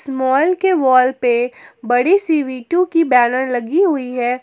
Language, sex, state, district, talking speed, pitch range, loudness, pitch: Hindi, female, Jharkhand, Garhwa, 175 wpm, 245-330 Hz, -16 LUFS, 260 Hz